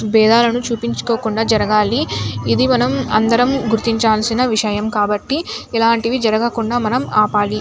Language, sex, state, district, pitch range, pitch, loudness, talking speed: Telugu, female, Andhra Pradesh, Anantapur, 215-235 Hz, 225 Hz, -16 LUFS, 100 wpm